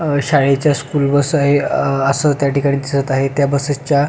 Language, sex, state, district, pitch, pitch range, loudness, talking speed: Marathi, male, Maharashtra, Pune, 140 Hz, 140-145 Hz, -15 LUFS, 175 wpm